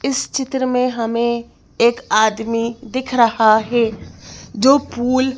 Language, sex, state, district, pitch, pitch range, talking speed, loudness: Hindi, female, Madhya Pradesh, Bhopal, 235 Hz, 230-260 Hz, 135 wpm, -17 LUFS